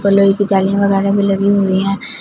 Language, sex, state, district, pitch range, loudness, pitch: Hindi, female, Punjab, Fazilka, 195-200 Hz, -13 LUFS, 200 Hz